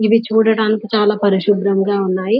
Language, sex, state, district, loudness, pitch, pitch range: Telugu, female, Telangana, Nalgonda, -15 LUFS, 210 Hz, 200-220 Hz